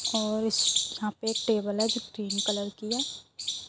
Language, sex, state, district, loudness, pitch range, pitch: Hindi, female, Uttar Pradesh, Muzaffarnagar, -28 LUFS, 210-225 Hz, 215 Hz